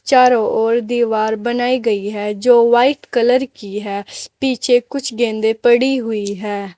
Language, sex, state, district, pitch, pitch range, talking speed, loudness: Hindi, female, Uttar Pradesh, Saharanpur, 235 Hz, 215-245 Hz, 150 wpm, -16 LUFS